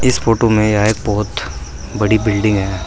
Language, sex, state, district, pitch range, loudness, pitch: Hindi, male, Uttar Pradesh, Saharanpur, 95-110 Hz, -15 LUFS, 105 Hz